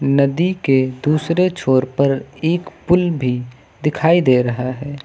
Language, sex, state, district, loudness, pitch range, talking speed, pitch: Hindi, female, Uttar Pradesh, Lucknow, -17 LUFS, 130-165 Hz, 145 wpm, 140 Hz